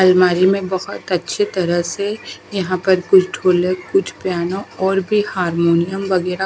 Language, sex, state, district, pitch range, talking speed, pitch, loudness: Hindi, female, Haryana, Charkhi Dadri, 180-195 Hz, 150 wpm, 185 Hz, -17 LUFS